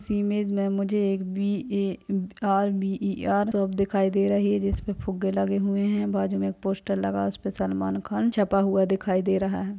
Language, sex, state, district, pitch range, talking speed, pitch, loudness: Hindi, female, Chhattisgarh, Balrampur, 185-200 Hz, 200 wpm, 195 Hz, -26 LUFS